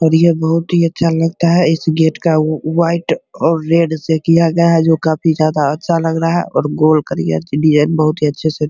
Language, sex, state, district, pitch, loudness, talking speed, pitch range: Hindi, male, Bihar, Begusarai, 160 Hz, -14 LUFS, 235 wpm, 155-165 Hz